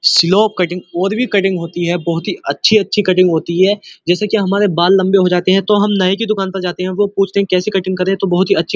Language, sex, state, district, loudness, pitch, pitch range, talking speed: Hindi, male, Uttar Pradesh, Muzaffarnagar, -14 LUFS, 190 Hz, 180-205 Hz, 280 wpm